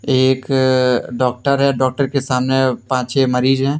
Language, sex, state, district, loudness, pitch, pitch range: Hindi, male, Jharkhand, Deoghar, -16 LUFS, 130 Hz, 125-135 Hz